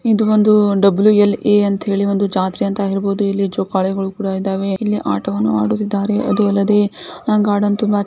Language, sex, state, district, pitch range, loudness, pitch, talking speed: Kannada, female, Karnataka, Gulbarga, 195-210 Hz, -16 LUFS, 200 Hz, 170 wpm